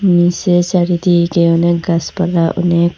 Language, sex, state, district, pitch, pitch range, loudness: Bengali, female, Assam, Hailakandi, 175 Hz, 170-175 Hz, -13 LUFS